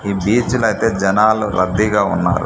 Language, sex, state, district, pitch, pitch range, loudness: Telugu, male, Andhra Pradesh, Manyam, 105 Hz, 100-110 Hz, -15 LUFS